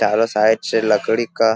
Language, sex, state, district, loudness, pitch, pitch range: Hindi, male, Bihar, Supaul, -17 LUFS, 110 Hz, 110-115 Hz